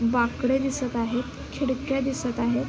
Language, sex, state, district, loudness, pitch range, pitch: Marathi, female, Maharashtra, Sindhudurg, -26 LUFS, 240-270 Hz, 255 Hz